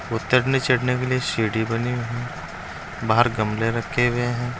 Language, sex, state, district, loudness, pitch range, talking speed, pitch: Hindi, male, Uttar Pradesh, Saharanpur, -22 LUFS, 115-125 Hz, 170 wpm, 120 Hz